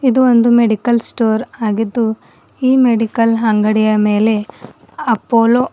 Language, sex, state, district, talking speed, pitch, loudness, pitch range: Kannada, female, Karnataka, Bidar, 115 wpm, 230 Hz, -14 LUFS, 220-240 Hz